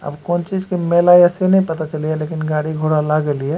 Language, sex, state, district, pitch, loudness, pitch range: Maithili, male, Bihar, Supaul, 155 Hz, -16 LUFS, 155-175 Hz